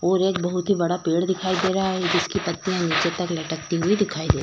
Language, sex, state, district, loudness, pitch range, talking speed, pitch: Hindi, female, Uttar Pradesh, Budaun, -23 LUFS, 170-185 Hz, 255 wpm, 180 Hz